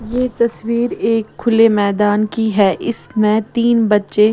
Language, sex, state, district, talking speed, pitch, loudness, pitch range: Hindi, female, Maharashtra, Mumbai Suburban, 140 wpm, 220 Hz, -15 LUFS, 210-235 Hz